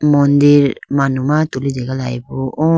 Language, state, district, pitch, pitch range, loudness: Idu Mishmi, Arunachal Pradesh, Lower Dibang Valley, 140 Hz, 130-145 Hz, -15 LUFS